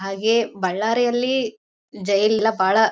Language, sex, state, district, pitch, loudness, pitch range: Kannada, female, Karnataka, Bellary, 220 Hz, -20 LUFS, 200-230 Hz